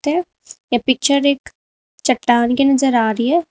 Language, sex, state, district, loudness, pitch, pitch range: Hindi, female, Uttar Pradesh, Lalitpur, -16 LUFS, 270 Hz, 240-280 Hz